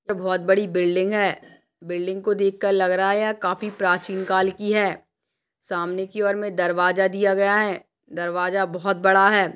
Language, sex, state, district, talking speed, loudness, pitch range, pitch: Hindi, female, Rajasthan, Nagaur, 180 wpm, -21 LUFS, 180-200 Hz, 190 Hz